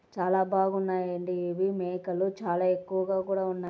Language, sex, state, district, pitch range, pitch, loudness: Telugu, female, Andhra Pradesh, Anantapur, 180-190 Hz, 185 Hz, -29 LUFS